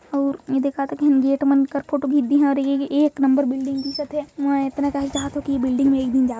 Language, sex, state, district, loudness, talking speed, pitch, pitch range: Hindi, male, Chhattisgarh, Jashpur, -20 LUFS, 290 wpm, 275 Hz, 275-285 Hz